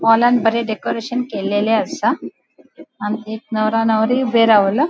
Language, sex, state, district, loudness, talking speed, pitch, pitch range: Konkani, female, Goa, North and South Goa, -17 LUFS, 135 wpm, 225 Hz, 215-240 Hz